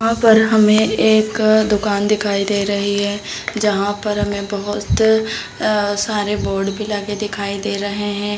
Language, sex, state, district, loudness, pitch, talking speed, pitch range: Hindi, female, Bihar, Saran, -17 LUFS, 205 Hz, 165 wpm, 205-215 Hz